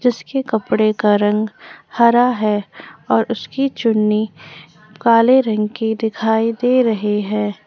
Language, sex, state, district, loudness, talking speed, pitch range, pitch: Hindi, female, Jharkhand, Ranchi, -17 LUFS, 135 wpm, 210-235 Hz, 220 Hz